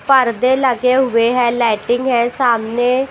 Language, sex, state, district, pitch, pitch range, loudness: Hindi, female, Maharashtra, Washim, 245 Hz, 235-260 Hz, -15 LUFS